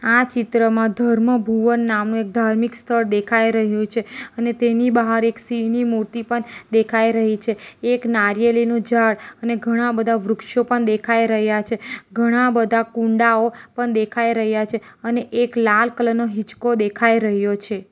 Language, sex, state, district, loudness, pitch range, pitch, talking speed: Gujarati, female, Gujarat, Valsad, -19 LUFS, 220-235 Hz, 230 Hz, 165 wpm